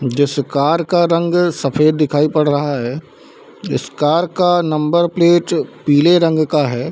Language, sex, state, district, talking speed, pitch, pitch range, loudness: Hindi, male, Bihar, Darbhanga, 180 wpm, 155 Hz, 145-170 Hz, -15 LUFS